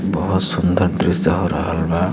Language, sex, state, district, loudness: Hindi, male, Uttar Pradesh, Gorakhpur, -17 LUFS